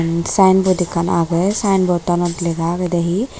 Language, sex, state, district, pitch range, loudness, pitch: Chakma, female, Tripura, Dhalai, 170-190 Hz, -17 LUFS, 175 Hz